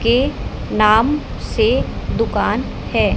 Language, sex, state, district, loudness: Hindi, female, Haryana, Charkhi Dadri, -18 LUFS